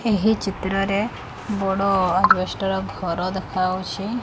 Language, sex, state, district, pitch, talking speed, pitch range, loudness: Odia, female, Odisha, Khordha, 195 Hz, 100 wpm, 185-205 Hz, -22 LUFS